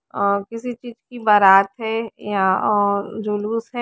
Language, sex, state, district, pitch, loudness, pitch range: Hindi, female, Chandigarh, Chandigarh, 215 Hz, -19 LUFS, 200-230 Hz